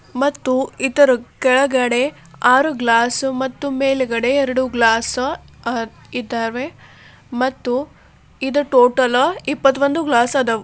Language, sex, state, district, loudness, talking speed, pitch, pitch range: Kannada, female, Karnataka, Belgaum, -17 LUFS, 90 wpm, 260 Hz, 245-275 Hz